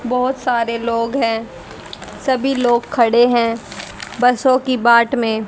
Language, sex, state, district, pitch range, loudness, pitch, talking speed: Hindi, female, Haryana, Rohtak, 230-255 Hz, -16 LUFS, 240 Hz, 130 wpm